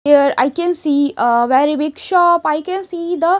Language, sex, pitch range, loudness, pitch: English, female, 285-350 Hz, -15 LUFS, 305 Hz